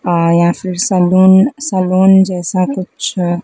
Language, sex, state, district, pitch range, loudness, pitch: Hindi, female, Madhya Pradesh, Dhar, 175-190 Hz, -12 LUFS, 185 Hz